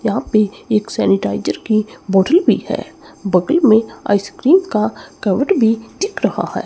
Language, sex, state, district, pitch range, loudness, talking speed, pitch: Hindi, male, Chandigarh, Chandigarh, 195-285 Hz, -16 LUFS, 155 wpm, 215 Hz